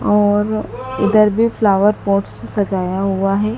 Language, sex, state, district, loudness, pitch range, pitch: Hindi, female, Madhya Pradesh, Dhar, -16 LUFS, 195-215 Hz, 205 Hz